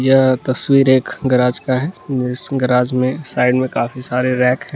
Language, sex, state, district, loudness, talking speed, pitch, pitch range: Hindi, male, Jharkhand, Garhwa, -16 LUFS, 190 wpm, 130 Hz, 125-135 Hz